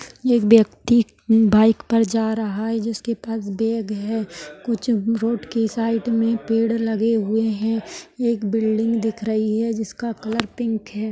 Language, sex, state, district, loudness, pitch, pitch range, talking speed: Hindi, female, Rajasthan, Nagaur, -21 LUFS, 225 Hz, 220-230 Hz, 155 wpm